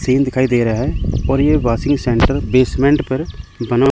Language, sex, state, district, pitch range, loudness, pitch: Hindi, male, Chandigarh, Chandigarh, 120-140 Hz, -16 LUFS, 130 Hz